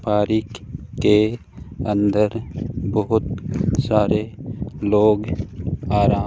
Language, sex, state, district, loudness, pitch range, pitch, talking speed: Hindi, male, Rajasthan, Jaipur, -21 LUFS, 105-110 Hz, 105 Hz, 75 wpm